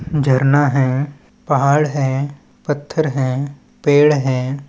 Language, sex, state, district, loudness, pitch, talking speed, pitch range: Chhattisgarhi, male, Chhattisgarh, Balrampur, -17 LUFS, 140 Hz, 100 wpm, 135-145 Hz